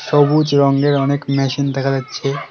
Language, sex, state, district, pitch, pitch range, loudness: Bengali, male, West Bengal, Cooch Behar, 140 Hz, 135-145 Hz, -16 LUFS